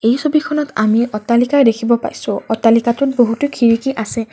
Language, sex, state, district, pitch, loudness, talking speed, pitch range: Assamese, female, Assam, Kamrup Metropolitan, 235 Hz, -15 LUFS, 140 wpm, 225-275 Hz